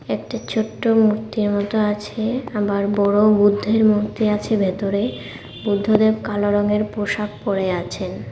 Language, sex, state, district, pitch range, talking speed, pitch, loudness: Bengali, female, Tripura, West Tripura, 205-220 Hz, 125 wpm, 210 Hz, -20 LUFS